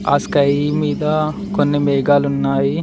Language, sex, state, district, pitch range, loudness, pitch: Telugu, male, Telangana, Mahabubabad, 140-155 Hz, -17 LUFS, 145 Hz